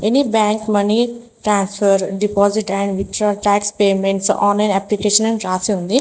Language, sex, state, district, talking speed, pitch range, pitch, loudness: Telugu, female, Telangana, Mahabubabad, 140 wpm, 200-215 Hz, 205 Hz, -16 LUFS